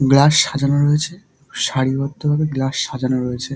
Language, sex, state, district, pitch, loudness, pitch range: Bengali, male, West Bengal, Dakshin Dinajpur, 140 Hz, -18 LUFS, 135-150 Hz